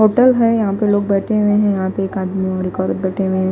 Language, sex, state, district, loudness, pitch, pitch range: Hindi, female, Maharashtra, Mumbai Suburban, -16 LUFS, 195 Hz, 190-210 Hz